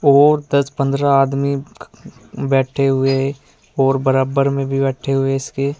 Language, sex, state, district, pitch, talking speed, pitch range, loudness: Hindi, male, Uttar Pradesh, Saharanpur, 135 Hz, 135 wpm, 135-140 Hz, -17 LUFS